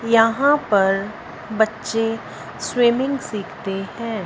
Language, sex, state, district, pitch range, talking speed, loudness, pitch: Hindi, female, Punjab, Fazilka, 205-235 Hz, 85 wpm, -20 LUFS, 225 Hz